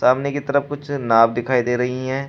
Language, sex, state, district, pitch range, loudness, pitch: Hindi, male, Uttar Pradesh, Shamli, 125-140 Hz, -19 LUFS, 130 Hz